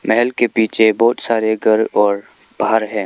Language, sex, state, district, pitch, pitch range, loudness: Hindi, male, Arunachal Pradesh, Lower Dibang Valley, 110 Hz, 110-115 Hz, -15 LUFS